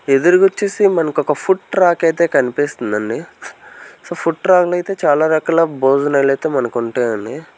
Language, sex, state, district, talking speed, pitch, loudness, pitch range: Telugu, male, Andhra Pradesh, Sri Satya Sai, 150 wpm, 165 Hz, -15 LUFS, 135-180 Hz